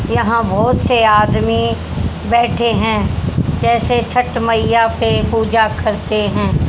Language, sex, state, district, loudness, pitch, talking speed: Hindi, female, Haryana, Jhajjar, -15 LUFS, 225 Hz, 115 wpm